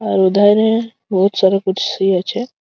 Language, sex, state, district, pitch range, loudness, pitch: Bengali, female, West Bengal, Malda, 190-220 Hz, -15 LUFS, 195 Hz